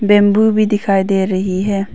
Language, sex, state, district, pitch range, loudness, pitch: Hindi, female, Arunachal Pradesh, Papum Pare, 195-210 Hz, -14 LUFS, 200 Hz